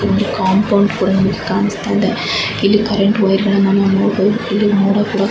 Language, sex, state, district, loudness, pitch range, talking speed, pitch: Kannada, female, Karnataka, Bijapur, -14 LUFS, 195-210 Hz, 160 wpm, 200 Hz